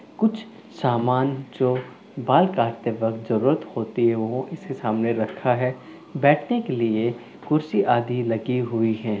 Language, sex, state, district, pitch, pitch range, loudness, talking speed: Hindi, male, Telangana, Karimnagar, 125 Hz, 115-140 Hz, -23 LUFS, 135 wpm